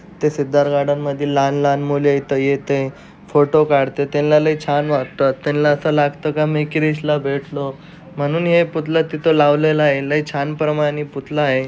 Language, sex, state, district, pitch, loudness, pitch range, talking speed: Marathi, male, Maharashtra, Aurangabad, 145 Hz, -17 LUFS, 140-155 Hz, 170 wpm